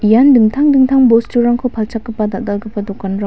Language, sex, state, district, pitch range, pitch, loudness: Garo, female, Meghalaya, West Garo Hills, 205-250 Hz, 225 Hz, -13 LUFS